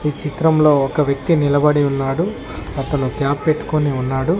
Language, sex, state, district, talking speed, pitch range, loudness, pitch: Telugu, male, Telangana, Mahabubabad, 135 wpm, 140-155 Hz, -17 LUFS, 145 Hz